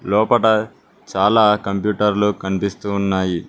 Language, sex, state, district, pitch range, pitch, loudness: Telugu, male, Telangana, Mahabubabad, 100-105 Hz, 105 Hz, -18 LUFS